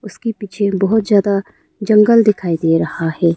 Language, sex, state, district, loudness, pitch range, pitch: Hindi, female, Arunachal Pradesh, Lower Dibang Valley, -15 LUFS, 180-220 Hz, 205 Hz